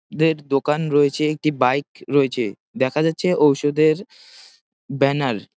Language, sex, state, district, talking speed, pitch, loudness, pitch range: Bengali, male, West Bengal, Jalpaiguri, 120 wpm, 145 Hz, -20 LUFS, 140-155 Hz